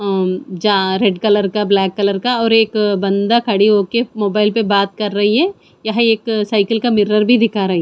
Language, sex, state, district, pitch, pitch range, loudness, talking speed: Hindi, female, Chandigarh, Chandigarh, 210 Hz, 200-225 Hz, -15 LUFS, 205 wpm